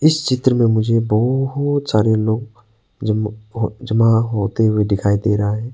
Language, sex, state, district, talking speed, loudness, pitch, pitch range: Hindi, male, Arunachal Pradesh, Papum Pare, 165 wpm, -17 LUFS, 110 Hz, 110-120 Hz